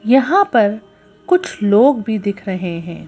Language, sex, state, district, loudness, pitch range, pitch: Hindi, female, Madhya Pradesh, Bhopal, -16 LUFS, 200-270 Hz, 215 Hz